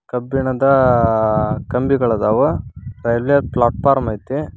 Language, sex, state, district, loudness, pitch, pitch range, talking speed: Kannada, male, Karnataka, Koppal, -17 LUFS, 125 Hz, 115-135 Hz, 80 wpm